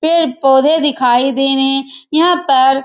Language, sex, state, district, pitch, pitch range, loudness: Hindi, female, Bihar, Saran, 270 Hz, 265-310 Hz, -12 LUFS